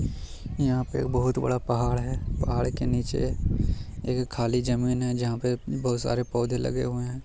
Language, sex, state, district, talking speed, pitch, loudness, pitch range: Hindi, male, Bihar, Jamui, 180 wpm, 120 Hz, -28 LUFS, 110-125 Hz